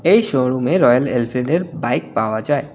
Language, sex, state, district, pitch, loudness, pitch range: Bengali, male, West Bengal, Alipurduar, 130 Hz, -17 LUFS, 120-145 Hz